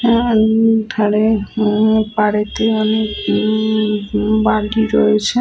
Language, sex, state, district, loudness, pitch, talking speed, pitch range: Bengali, female, Jharkhand, Sahebganj, -15 LUFS, 215 Hz, 110 wpm, 210-220 Hz